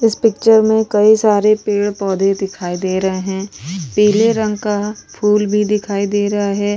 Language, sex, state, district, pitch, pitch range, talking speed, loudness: Hindi, female, Bihar, Vaishali, 205 Hz, 195-215 Hz, 175 wpm, -15 LUFS